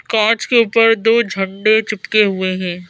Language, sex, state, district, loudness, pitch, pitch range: Hindi, female, Madhya Pradesh, Bhopal, -15 LUFS, 215 Hz, 195-225 Hz